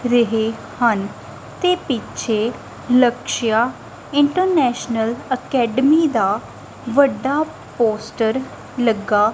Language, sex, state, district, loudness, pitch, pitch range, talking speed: Punjabi, female, Punjab, Kapurthala, -19 LUFS, 245 Hz, 225-270 Hz, 70 wpm